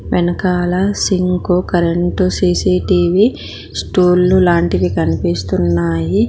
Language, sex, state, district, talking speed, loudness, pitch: Telugu, female, Telangana, Mahabubabad, 65 wpm, -14 LUFS, 175 Hz